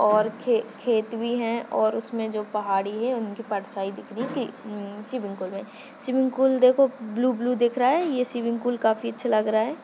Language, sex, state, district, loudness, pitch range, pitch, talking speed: Hindi, female, Maharashtra, Sindhudurg, -25 LUFS, 215-250 Hz, 230 Hz, 190 wpm